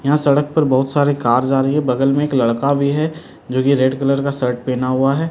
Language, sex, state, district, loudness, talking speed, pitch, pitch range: Hindi, male, Delhi, New Delhi, -17 LUFS, 270 wpm, 135 Hz, 130-145 Hz